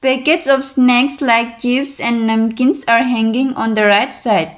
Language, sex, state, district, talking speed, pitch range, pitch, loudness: English, female, Arunachal Pradesh, Lower Dibang Valley, 170 wpm, 225-265 Hz, 245 Hz, -14 LUFS